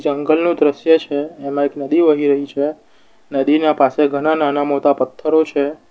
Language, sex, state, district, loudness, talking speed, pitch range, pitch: Gujarati, male, Gujarat, Valsad, -16 LUFS, 165 wpm, 140-155 Hz, 145 Hz